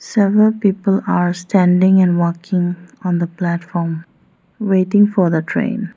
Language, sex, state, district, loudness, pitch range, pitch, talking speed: English, female, Arunachal Pradesh, Lower Dibang Valley, -16 LUFS, 175-200 Hz, 185 Hz, 130 wpm